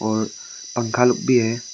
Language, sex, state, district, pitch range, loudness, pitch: Hindi, male, Arunachal Pradesh, Longding, 110-125 Hz, -20 LUFS, 120 Hz